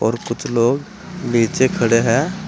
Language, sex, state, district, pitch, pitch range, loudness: Hindi, male, Uttar Pradesh, Saharanpur, 130 Hz, 115-180 Hz, -18 LUFS